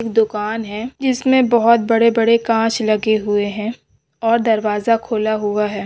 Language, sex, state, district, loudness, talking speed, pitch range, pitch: Hindi, female, West Bengal, Jalpaiguri, -17 LUFS, 165 wpm, 215-230 Hz, 225 Hz